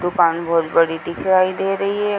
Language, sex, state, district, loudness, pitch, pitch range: Hindi, female, Uttar Pradesh, Hamirpur, -18 LUFS, 180 Hz, 170-195 Hz